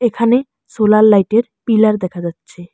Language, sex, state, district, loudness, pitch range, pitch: Bengali, male, West Bengal, Alipurduar, -14 LUFS, 195-230 Hz, 215 Hz